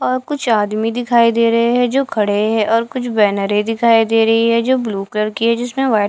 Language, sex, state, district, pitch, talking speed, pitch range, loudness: Hindi, female, Bihar, Katihar, 230 Hz, 245 wpm, 215-240 Hz, -15 LUFS